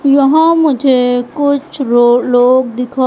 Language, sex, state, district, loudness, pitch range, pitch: Hindi, female, Madhya Pradesh, Katni, -11 LUFS, 245-280 Hz, 260 Hz